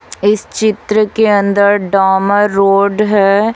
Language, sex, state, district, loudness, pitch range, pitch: Hindi, female, Chhattisgarh, Raipur, -12 LUFS, 195-210 Hz, 205 Hz